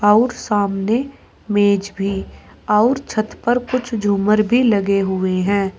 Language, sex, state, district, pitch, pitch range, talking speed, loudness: Hindi, female, Uttar Pradesh, Saharanpur, 210 Hz, 200-230 Hz, 135 wpm, -18 LUFS